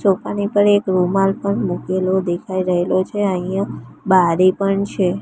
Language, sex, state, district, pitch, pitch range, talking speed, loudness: Gujarati, female, Gujarat, Gandhinagar, 190 Hz, 185-200 Hz, 140 wpm, -18 LUFS